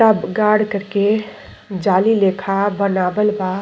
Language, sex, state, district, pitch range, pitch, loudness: Bhojpuri, female, Uttar Pradesh, Deoria, 190-210 Hz, 200 Hz, -17 LUFS